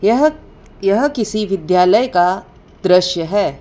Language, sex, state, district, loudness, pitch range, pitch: Hindi, female, Gujarat, Valsad, -15 LUFS, 180-220 Hz, 195 Hz